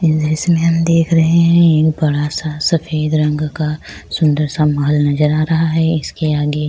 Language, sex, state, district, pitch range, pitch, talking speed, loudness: Urdu, female, Bihar, Saharsa, 150-165 Hz, 155 Hz, 190 wpm, -15 LUFS